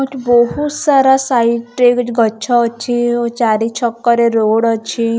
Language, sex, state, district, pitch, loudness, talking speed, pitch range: Odia, female, Odisha, Khordha, 235 Hz, -14 LUFS, 125 wpm, 230-245 Hz